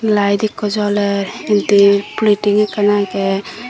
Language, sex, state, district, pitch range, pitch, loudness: Chakma, female, Tripura, Dhalai, 200-210 Hz, 205 Hz, -15 LUFS